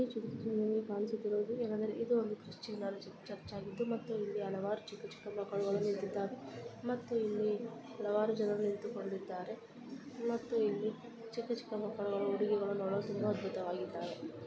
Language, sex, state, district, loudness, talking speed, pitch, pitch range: Kannada, female, Karnataka, Chamarajanagar, -38 LUFS, 115 wpm, 215 Hz, 205-230 Hz